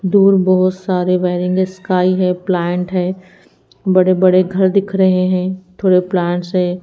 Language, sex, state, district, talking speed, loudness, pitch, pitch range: Hindi, female, Haryana, Rohtak, 150 wpm, -15 LUFS, 185 Hz, 180-185 Hz